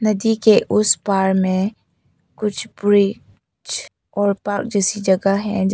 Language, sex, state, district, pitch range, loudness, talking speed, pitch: Hindi, female, Arunachal Pradesh, Papum Pare, 195-210 Hz, -18 LUFS, 145 wpm, 205 Hz